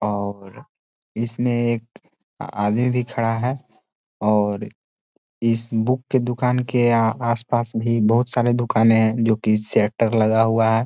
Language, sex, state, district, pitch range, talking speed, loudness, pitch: Hindi, male, Chhattisgarh, Korba, 110-120 Hz, 140 wpm, -20 LUFS, 115 Hz